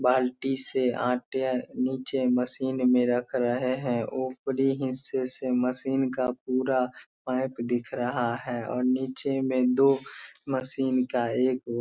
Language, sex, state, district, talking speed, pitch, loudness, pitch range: Hindi, male, Bihar, Darbhanga, 135 wpm, 130 Hz, -27 LUFS, 125-130 Hz